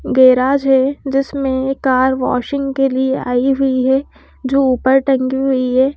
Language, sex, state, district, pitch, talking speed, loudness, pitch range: Hindi, female, Madhya Pradesh, Bhopal, 265 Hz, 150 wpm, -15 LUFS, 260-270 Hz